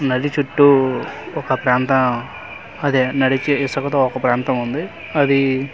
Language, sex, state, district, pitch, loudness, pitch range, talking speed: Telugu, male, Andhra Pradesh, Manyam, 135 Hz, -18 LUFS, 130-140 Hz, 125 wpm